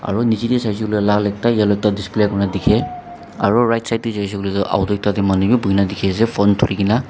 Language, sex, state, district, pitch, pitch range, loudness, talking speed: Nagamese, male, Nagaland, Dimapur, 105 Hz, 100-115 Hz, -17 LUFS, 220 wpm